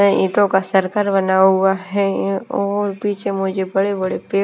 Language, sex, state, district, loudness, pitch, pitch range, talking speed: Hindi, female, Himachal Pradesh, Shimla, -18 LUFS, 195 Hz, 190-200 Hz, 160 wpm